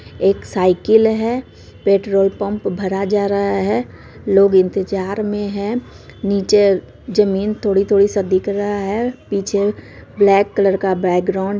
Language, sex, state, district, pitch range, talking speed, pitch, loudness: Maithili, female, Bihar, Supaul, 195-205 Hz, 135 wpm, 200 Hz, -17 LUFS